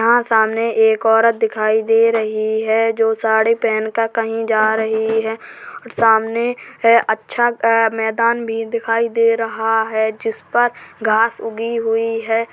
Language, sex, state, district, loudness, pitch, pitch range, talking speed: Hindi, female, Uttar Pradesh, Jalaun, -17 LUFS, 225 Hz, 220-230 Hz, 145 wpm